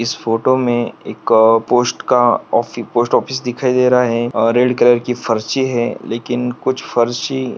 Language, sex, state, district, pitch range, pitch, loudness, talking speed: Hindi, male, Maharashtra, Pune, 120-125 Hz, 120 Hz, -15 LUFS, 175 wpm